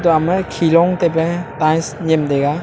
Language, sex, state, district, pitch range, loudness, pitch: Wancho, male, Arunachal Pradesh, Longding, 155-170 Hz, -16 LUFS, 165 Hz